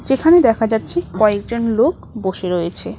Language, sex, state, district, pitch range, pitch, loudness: Bengali, female, West Bengal, Cooch Behar, 185-230 Hz, 215 Hz, -16 LUFS